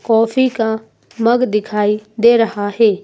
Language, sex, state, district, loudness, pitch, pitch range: Hindi, female, Madhya Pradesh, Bhopal, -15 LUFS, 225 Hz, 210-230 Hz